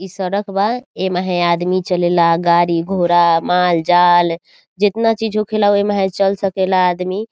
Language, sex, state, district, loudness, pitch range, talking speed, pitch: Bhojpuri, female, Bihar, Saran, -15 LUFS, 175-200 Hz, 150 wpm, 185 Hz